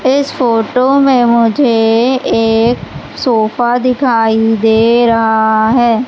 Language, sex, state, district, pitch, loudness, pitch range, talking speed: Hindi, female, Madhya Pradesh, Umaria, 235 Hz, -11 LUFS, 225-255 Hz, 100 wpm